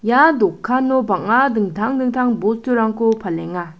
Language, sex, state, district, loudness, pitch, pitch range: Garo, female, Meghalaya, South Garo Hills, -17 LUFS, 225 Hz, 205-255 Hz